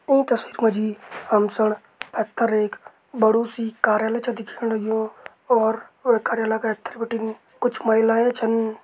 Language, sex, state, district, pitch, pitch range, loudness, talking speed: Garhwali, male, Uttarakhand, Tehri Garhwal, 225 Hz, 220-235 Hz, -22 LUFS, 150 wpm